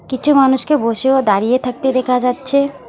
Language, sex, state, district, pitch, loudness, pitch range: Bengali, female, West Bengal, Alipurduar, 260 Hz, -14 LUFS, 250-275 Hz